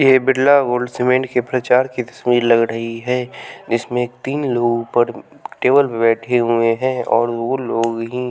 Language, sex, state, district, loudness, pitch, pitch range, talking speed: Hindi, male, Bihar, West Champaran, -17 LUFS, 125 Hz, 115-130 Hz, 175 wpm